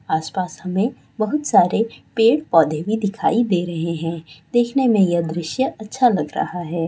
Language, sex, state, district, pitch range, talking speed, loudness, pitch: Hindi, female, West Bengal, Kolkata, 165-230 Hz, 165 wpm, -20 LUFS, 195 Hz